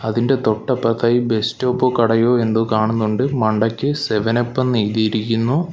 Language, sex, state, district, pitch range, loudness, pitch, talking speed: Malayalam, male, Kerala, Kollam, 110-125 Hz, -18 LUFS, 115 Hz, 115 wpm